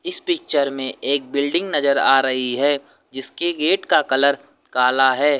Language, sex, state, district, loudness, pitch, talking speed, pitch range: Hindi, male, Uttar Pradesh, Lucknow, -17 LUFS, 140 Hz, 165 wpm, 135-145 Hz